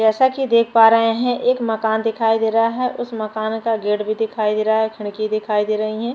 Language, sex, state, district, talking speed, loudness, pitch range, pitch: Hindi, female, Chhattisgarh, Bastar, 255 wpm, -18 LUFS, 215-230 Hz, 225 Hz